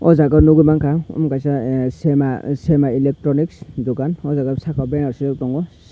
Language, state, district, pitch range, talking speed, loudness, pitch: Kokborok, Tripura, Dhalai, 135-155 Hz, 215 wpm, -17 LUFS, 145 Hz